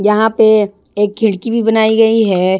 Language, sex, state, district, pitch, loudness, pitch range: Hindi, female, Jharkhand, Ranchi, 220 Hz, -12 LUFS, 205-225 Hz